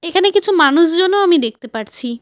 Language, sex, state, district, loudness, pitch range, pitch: Bengali, female, West Bengal, Cooch Behar, -13 LUFS, 245-380 Hz, 335 Hz